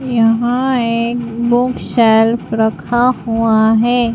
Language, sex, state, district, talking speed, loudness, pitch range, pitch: Hindi, female, Madhya Pradesh, Bhopal, 100 wpm, -14 LUFS, 225-245 Hz, 235 Hz